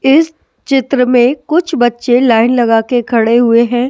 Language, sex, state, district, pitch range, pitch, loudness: Hindi, male, Delhi, New Delhi, 235-270 Hz, 245 Hz, -11 LUFS